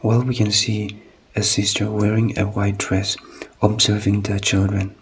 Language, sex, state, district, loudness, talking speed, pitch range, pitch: English, male, Nagaland, Kohima, -19 LUFS, 155 wpm, 100-105 Hz, 105 Hz